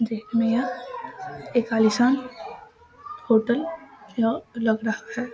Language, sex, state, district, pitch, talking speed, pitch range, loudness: Maithili, female, Bihar, Samastipur, 240 Hz, 115 wpm, 225-305 Hz, -24 LUFS